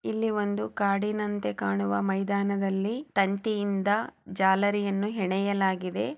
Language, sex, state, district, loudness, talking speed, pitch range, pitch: Kannada, female, Karnataka, Chamarajanagar, -27 LUFS, 75 wpm, 190-210 Hz, 200 Hz